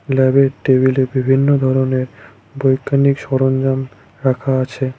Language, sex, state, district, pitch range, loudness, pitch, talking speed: Bengali, male, West Bengal, Cooch Behar, 130-135 Hz, -16 LUFS, 130 Hz, 95 wpm